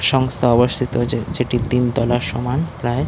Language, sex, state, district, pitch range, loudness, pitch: Bengali, male, West Bengal, Dakshin Dinajpur, 120-125 Hz, -18 LUFS, 125 Hz